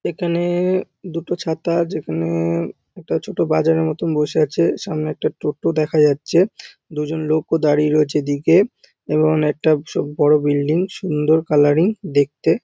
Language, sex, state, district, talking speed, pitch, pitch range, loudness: Bengali, male, West Bengal, North 24 Parganas, 135 wpm, 155 Hz, 150-170 Hz, -19 LUFS